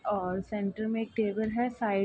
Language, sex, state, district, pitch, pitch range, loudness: Hindi, female, Bihar, Darbhanga, 215 Hz, 200-225 Hz, -32 LUFS